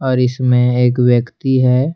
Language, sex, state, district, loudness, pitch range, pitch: Hindi, male, Jharkhand, Deoghar, -14 LUFS, 125-130 Hz, 125 Hz